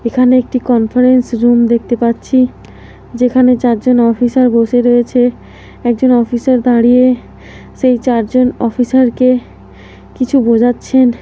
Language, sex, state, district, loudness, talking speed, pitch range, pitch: Bengali, female, West Bengal, Kolkata, -11 LUFS, 105 wpm, 240-255 Hz, 245 Hz